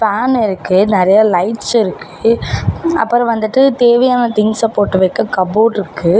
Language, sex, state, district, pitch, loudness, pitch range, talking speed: Tamil, female, Tamil Nadu, Namakkal, 220 Hz, -13 LUFS, 200-240 Hz, 125 wpm